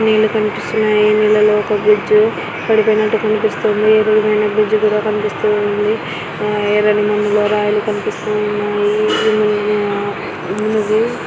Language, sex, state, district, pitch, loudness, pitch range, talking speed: Telugu, female, Andhra Pradesh, Anantapur, 210 Hz, -15 LUFS, 210-215 Hz, 85 wpm